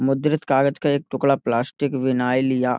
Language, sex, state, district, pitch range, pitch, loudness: Hindi, male, Uttar Pradesh, Hamirpur, 130-140 Hz, 135 Hz, -21 LUFS